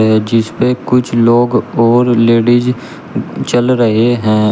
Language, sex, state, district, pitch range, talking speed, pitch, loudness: Hindi, male, Uttar Pradesh, Shamli, 115-120 Hz, 135 wpm, 120 Hz, -12 LUFS